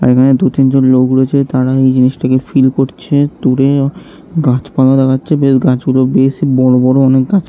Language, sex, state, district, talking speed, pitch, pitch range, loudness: Bengali, male, West Bengal, Jhargram, 185 wpm, 130 Hz, 130-135 Hz, -11 LUFS